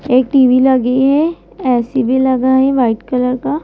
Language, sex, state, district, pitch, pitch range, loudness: Hindi, female, Madhya Pradesh, Bhopal, 260 Hz, 250-270 Hz, -13 LUFS